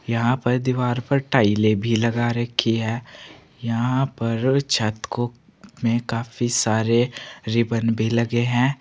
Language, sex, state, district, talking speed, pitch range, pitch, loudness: Hindi, male, Uttar Pradesh, Saharanpur, 135 wpm, 115-125 Hz, 120 Hz, -22 LUFS